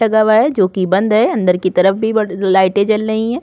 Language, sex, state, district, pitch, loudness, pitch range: Hindi, female, Chhattisgarh, Korba, 210 Hz, -14 LUFS, 190-220 Hz